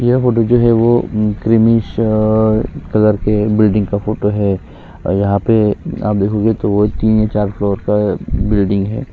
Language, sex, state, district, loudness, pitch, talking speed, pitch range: Hindi, female, Chhattisgarh, Sukma, -14 LUFS, 105 Hz, 165 wpm, 100-110 Hz